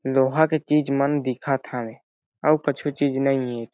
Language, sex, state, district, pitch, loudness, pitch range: Chhattisgarhi, male, Chhattisgarh, Jashpur, 140 Hz, -23 LUFS, 130-150 Hz